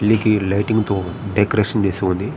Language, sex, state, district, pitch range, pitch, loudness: Telugu, male, Andhra Pradesh, Srikakulam, 95-110 Hz, 105 Hz, -18 LUFS